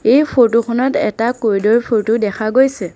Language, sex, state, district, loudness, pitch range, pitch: Assamese, female, Assam, Sonitpur, -15 LUFS, 215-255 Hz, 230 Hz